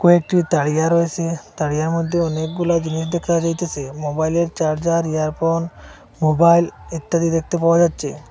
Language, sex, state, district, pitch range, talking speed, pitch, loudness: Bengali, male, Assam, Hailakandi, 160-170 Hz, 125 wpm, 165 Hz, -19 LUFS